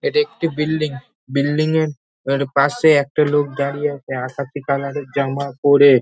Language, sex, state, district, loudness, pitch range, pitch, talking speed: Bengali, male, West Bengal, North 24 Parganas, -19 LUFS, 140-150 Hz, 140 Hz, 170 wpm